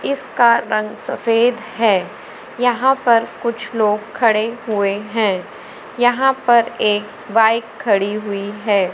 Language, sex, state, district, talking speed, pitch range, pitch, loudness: Hindi, female, Madhya Pradesh, Umaria, 120 wpm, 210-240 Hz, 225 Hz, -17 LUFS